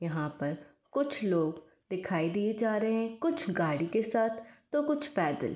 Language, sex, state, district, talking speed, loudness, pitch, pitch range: Hindi, female, Uttar Pradesh, Varanasi, 170 wpm, -32 LUFS, 190 Hz, 160-225 Hz